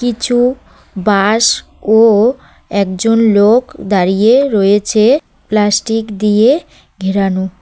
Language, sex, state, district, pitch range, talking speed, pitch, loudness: Bengali, female, West Bengal, Cooch Behar, 200-235 Hz, 80 wpm, 215 Hz, -12 LUFS